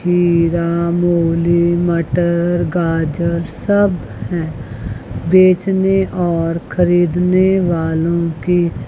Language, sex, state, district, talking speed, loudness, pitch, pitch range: Hindi, female, Chandigarh, Chandigarh, 75 wpm, -15 LUFS, 170 Hz, 165-175 Hz